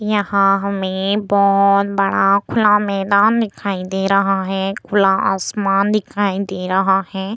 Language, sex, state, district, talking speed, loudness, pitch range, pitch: Hindi, female, Bihar, Vaishali, 140 wpm, -16 LUFS, 195-205 Hz, 195 Hz